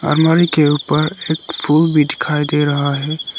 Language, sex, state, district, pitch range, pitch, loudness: Hindi, male, Arunachal Pradesh, Lower Dibang Valley, 145-160 Hz, 150 Hz, -15 LUFS